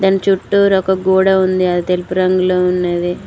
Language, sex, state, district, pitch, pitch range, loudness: Telugu, female, Telangana, Mahabubabad, 185 Hz, 180-190 Hz, -14 LUFS